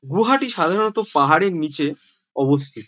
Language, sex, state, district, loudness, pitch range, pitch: Bengali, male, West Bengal, Jhargram, -19 LUFS, 140-215 Hz, 155 Hz